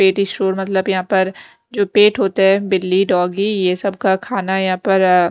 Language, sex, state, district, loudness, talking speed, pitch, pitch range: Hindi, female, Punjab, Kapurthala, -16 LUFS, 180 wpm, 195 Hz, 185-200 Hz